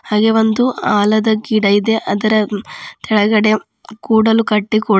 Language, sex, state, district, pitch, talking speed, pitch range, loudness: Kannada, female, Karnataka, Bidar, 215 Hz, 120 wpm, 210-220 Hz, -14 LUFS